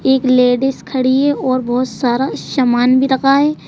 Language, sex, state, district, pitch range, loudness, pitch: Hindi, female, Madhya Pradesh, Bhopal, 250-270 Hz, -14 LUFS, 260 Hz